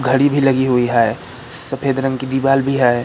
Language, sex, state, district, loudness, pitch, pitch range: Hindi, male, Madhya Pradesh, Katni, -16 LUFS, 135 Hz, 125-135 Hz